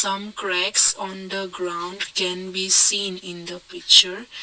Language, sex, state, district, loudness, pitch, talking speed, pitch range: English, male, Assam, Kamrup Metropolitan, -19 LUFS, 190 Hz, 150 wpm, 180-195 Hz